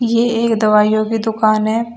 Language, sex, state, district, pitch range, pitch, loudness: Hindi, female, Uttar Pradesh, Shamli, 215-230 Hz, 225 Hz, -15 LUFS